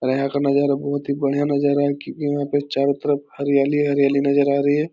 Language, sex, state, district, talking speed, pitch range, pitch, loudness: Hindi, male, Bihar, Supaul, 245 wpm, 140-145 Hz, 140 Hz, -20 LUFS